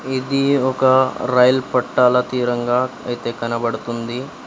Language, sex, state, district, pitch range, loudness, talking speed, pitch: Telugu, female, Telangana, Komaram Bheem, 120-130 Hz, -18 LUFS, 95 wpm, 125 Hz